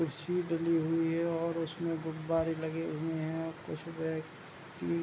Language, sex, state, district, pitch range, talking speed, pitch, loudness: Hindi, male, Bihar, Begusarai, 160-165 Hz, 155 wpm, 165 Hz, -34 LUFS